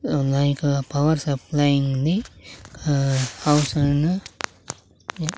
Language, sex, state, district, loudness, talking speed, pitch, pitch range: Telugu, male, Andhra Pradesh, Sri Satya Sai, -22 LUFS, 80 wpm, 145 Hz, 140-150 Hz